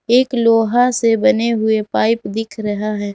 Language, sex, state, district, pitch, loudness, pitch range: Hindi, female, Jharkhand, Garhwa, 225 Hz, -16 LUFS, 215-240 Hz